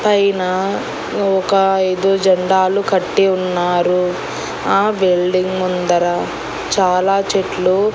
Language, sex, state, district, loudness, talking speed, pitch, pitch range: Telugu, female, Andhra Pradesh, Annamaya, -16 LUFS, 85 wpm, 190 Hz, 180-195 Hz